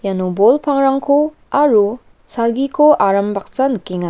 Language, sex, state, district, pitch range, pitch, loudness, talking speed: Garo, female, Meghalaya, West Garo Hills, 200-280 Hz, 250 Hz, -15 LUFS, 115 wpm